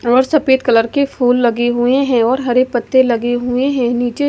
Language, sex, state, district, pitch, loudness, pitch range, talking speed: Hindi, female, Odisha, Malkangiri, 245 Hz, -14 LUFS, 240-265 Hz, 210 wpm